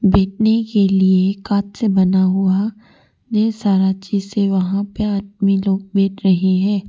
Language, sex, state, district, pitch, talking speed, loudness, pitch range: Hindi, female, Arunachal Pradesh, Papum Pare, 195 Hz, 150 wpm, -17 LUFS, 190-205 Hz